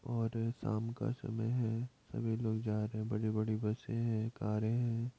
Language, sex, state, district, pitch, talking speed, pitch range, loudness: Hindi, male, Bihar, Madhepura, 115 Hz, 195 wpm, 110-115 Hz, -37 LUFS